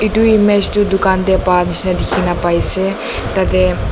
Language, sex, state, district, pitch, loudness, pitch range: Nagamese, female, Nagaland, Dimapur, 190 Hz, -14 LUFS, 175-205 Hz